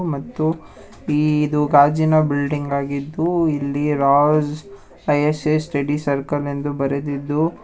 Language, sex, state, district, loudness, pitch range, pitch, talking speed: Kannada, male, Karnataka, Bangalore, -19 LUFS, 140-155 Hz, 150 Hz, 100 wpm